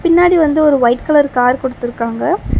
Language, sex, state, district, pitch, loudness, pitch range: Tamil, female, Tamil Nadu, Chennai, 265 Hz, -13 LUFS, 245-310 Hz